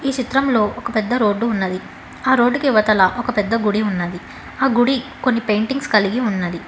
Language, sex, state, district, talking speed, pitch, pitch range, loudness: Telugu, female, Telangana, Hyderabad, 180 wpm, 225 Hz, 210-255 Hz, -18 LUFS